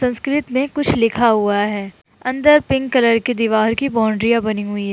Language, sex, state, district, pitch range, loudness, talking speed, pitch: Hindi, female, Uttar Pradesh, Jalaun, 215-265 Hz, -17 LUFS, 195 wpm, 230 Hz